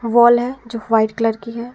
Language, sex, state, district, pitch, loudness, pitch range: Hindi, female, Jharkhand, Garhwa, 230 Hz, -17 LUFS, 225-240 Hz